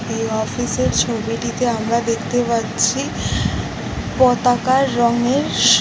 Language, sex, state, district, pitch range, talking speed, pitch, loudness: Bengali, female, West Bengal, North 24 Parganas, 230-250 Hz, 105 wpm, 240 Hz, -18 LUFS